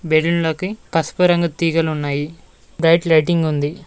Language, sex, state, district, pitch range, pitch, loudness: Telugu, male, Telangana, Mahabubabad, 155-170 Hz, 165 Hz, -18 LUFS